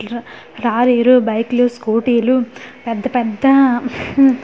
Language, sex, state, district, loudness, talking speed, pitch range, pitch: Telugu, female, Andhra Pradesh, Manyam, -15 LUFS, 120 wpm, 235-255 Hz, 245 Hz